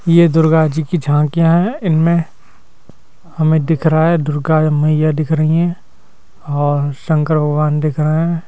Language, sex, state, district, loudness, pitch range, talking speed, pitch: Hindi, male, Madhya Pradesh, Bhopal, -14 LUFS, 150-165 Hz, 155 wpm, 160 Hz